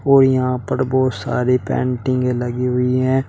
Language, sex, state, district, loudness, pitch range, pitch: Hindi, male, Uttar Pradesh, Shamli, -18 LUFS, 125-130 Hz, 125 Hz